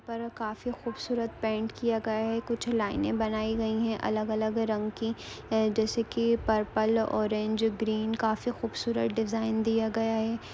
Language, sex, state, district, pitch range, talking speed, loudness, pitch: Hindi, female, Andhra Pradesh, Visakhapatnam, 220-230 Hz, 155 wpm, -30 LUFS, 225 Hz